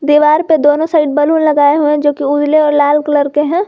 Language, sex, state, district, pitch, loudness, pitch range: Hindi, female, Jharkhand, Garhwa, 295 Hz, -11 LUFS, 290-310 Hz